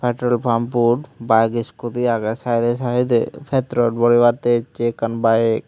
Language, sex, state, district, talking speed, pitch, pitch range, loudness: Chakma, male, Tripura, Unakoti, 135 wpm, 120 Hz, 115-120 Hz, -18 LUFS